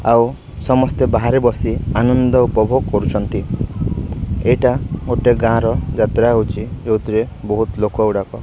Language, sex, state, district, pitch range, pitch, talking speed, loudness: Odia, male, Odisha, Khordha, 105-120 Hz, 115 Hz, 120 wpm, -17 LUFS